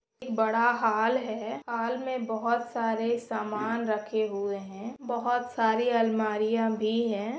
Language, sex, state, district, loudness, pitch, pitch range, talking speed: Hindi, female, West Bengal, Jalpaiguri, -28 LUFS, 225 Hz, 220-235 Hz, 260 wpm